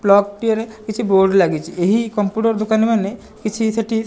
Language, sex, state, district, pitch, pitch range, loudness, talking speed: Odia, male, Odisha, Nuapada, 215 Hz, 200-225 Hz, -18 LUFS, 190 wpm